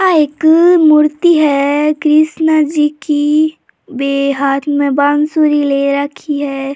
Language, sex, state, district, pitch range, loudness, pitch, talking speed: Rajasthani, female, Rajasthan, Churu, 280-310 Hz, -12 LUFS, 295 Hz, 125 wpm